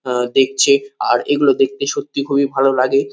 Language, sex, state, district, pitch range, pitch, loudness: Bengali, male, West Bengal, Kolkata, 135-140 Hz, 135 Hz, -16 LUFS